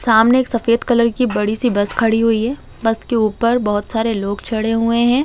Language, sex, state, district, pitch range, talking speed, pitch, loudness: Hindi, female, Chhattisgarh, Raigarh, 220-235 Hz, 240 wpm, 225 Hz, -16 LUFS